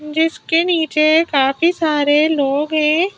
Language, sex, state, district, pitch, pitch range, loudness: Hindi, female, Madhya Pradesh, Bhopal, 310 Hz, 295-325 Hz, -15 LUFS